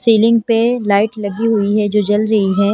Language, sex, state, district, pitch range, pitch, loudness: Hindi, female, Himachal Pradesh, Shimla, 205-225 Hz, 210 Hz, -14 LUFS